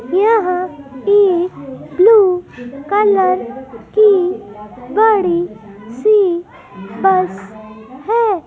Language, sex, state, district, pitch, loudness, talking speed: Hindi, female, Madhya Pradesh, Dhar, 345 Hz, -14 LUFS, 65 wpm